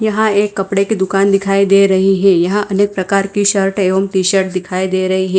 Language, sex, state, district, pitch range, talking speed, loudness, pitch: Hindi, female, Punjab, Fazilka, 190-200 Hz, 235 wpm, -13 LUFS, 195 Hz